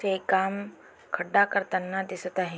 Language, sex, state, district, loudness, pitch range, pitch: Marathi, female, Maharashtra, Aurangabad, -27 LUFS, 185-195 Hz, 190 Hz